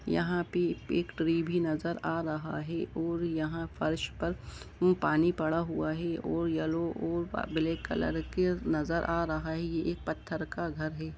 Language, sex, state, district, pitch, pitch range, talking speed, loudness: Hindi, male, Jharkhand, Jamtara, 165 Hz, 160-170 Hz, 175 wpm, -32 LUFS